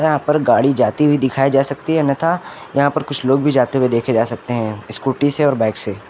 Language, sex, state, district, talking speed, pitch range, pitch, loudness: Hindi, male, Uttar Pradesh, Lucknow, 255 wpm, 125-145 Hz, 135 Hz, -17 LUFS